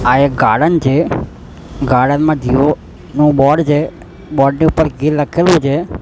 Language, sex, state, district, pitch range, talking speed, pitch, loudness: Gujarati, male, Gujarat, Gandhinagar, 135-155 Hz, 150 wpm, 145 Hz, -13 LUFS